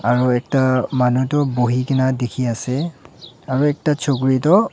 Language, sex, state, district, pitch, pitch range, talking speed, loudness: Nagamese, male, Nagaland, Dimapur, 130 Hz, 125-145 Hz, 150 wpm, -18 LUFS